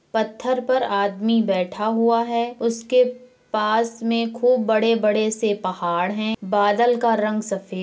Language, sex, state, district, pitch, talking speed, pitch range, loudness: Hindi, female, Uttar Pradesh, Varanasi, 220 Hz, 145 wpm, 210-235 Hz, -21 LUFS